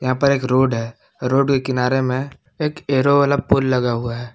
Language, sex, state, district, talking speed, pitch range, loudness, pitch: Hindi, male, Jharkhand, Palamu, 220 wpm, 125-140 Hz, -18 LUFS, 130 Hz